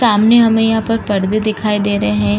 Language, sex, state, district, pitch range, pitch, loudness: Hindi, female, Uttar Pradesh, Jalaun, 205-225 Hz, 215 Hz, -14 LUFS